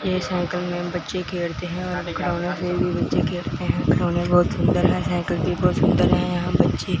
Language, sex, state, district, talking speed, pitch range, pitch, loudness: Hindi, male, Punjab, Fazilka, 145 wpm, 175-180 Hz, 175 Hz, -22 LUFS